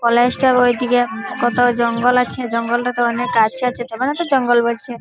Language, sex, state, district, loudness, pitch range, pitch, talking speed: Bengali, female, West Bengal, Malda, -17 LUFS, 235-250 Hz, 245 Hz, 225 wpm